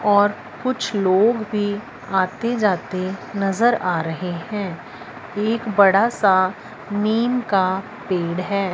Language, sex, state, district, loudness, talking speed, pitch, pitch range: Hindi, female, Punjab, Fazilka, -20 LUFS, 115 wpm, 205 Hz, 190-220 Hz